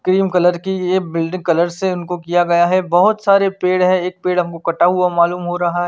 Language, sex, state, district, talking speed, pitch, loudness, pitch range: Hindi, male, Chandigarh, Chandigarh, 245 wpm, 180 Hz, -16 LUFS, 175-185 Hz